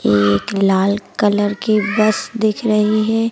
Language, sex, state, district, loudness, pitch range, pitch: Hindi, female, Uttar Pradesh, Lucknow, -16 LUFS, 200-215 Hz, 210 Hz